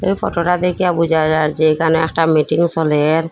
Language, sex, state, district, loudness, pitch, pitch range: Bengali, female, Assam, Hailakandi, -15 LUFS, 160 Hz, 155-170 Hz